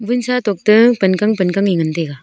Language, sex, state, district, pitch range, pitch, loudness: Wancho, female, Arunachal Pradesh, Longding, 180-225 Hz, 200 Hz, -14 LUFS